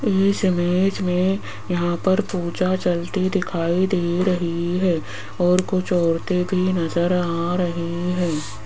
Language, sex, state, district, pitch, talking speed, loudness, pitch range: Hindi, female, Rajasthan, Jaipur, 180 Hz, 130 wpm, -21 LUFS, 170-185 Hz